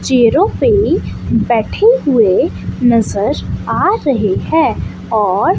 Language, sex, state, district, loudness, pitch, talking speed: Hindi, female, Chandigarh, Chandigarh, -13 LUFS, 320 Hz, 110 wpm